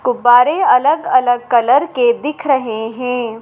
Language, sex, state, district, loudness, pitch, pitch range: Hindi, female, Madhya Pradesh, Dhar, -14 LUFS, 250 Hz, 240-270 Hz